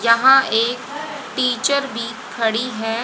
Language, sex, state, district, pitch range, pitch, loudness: Hindi, female, Haryana, Jhajjar, 225-270 Hz, 245 Hz, -18 LUFS